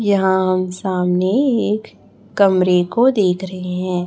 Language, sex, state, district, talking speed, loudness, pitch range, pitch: Hindi, male, Chhattisgarh, Raipur, 135 wpm, -17 LUFS, 180-205 Hz, 190 Hz